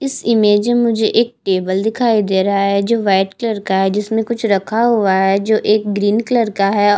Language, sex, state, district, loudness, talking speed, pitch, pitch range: Hindi, female, Chhattisgarh, Bastar, -15 LUFS, 230 wpm, 210 Hz, 195-230 Hz